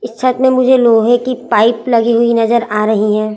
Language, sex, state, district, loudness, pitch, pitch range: Hindi, female, Chhattisgarh, Raipur, -12 LUFS, 235 Hz, 220-250 Hz